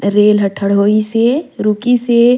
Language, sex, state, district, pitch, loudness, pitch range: Surgujia, female, Chhattisgarh, Sarguja, 215 Hz, -13 LUFS, 205-240 Hz